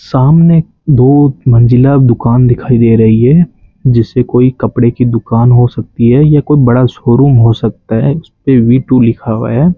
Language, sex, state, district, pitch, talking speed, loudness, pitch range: Hindi, male, Rajasthan, Bikaner, 125 Hz, 180 wpm, -9 LUFS, 115-140 Hz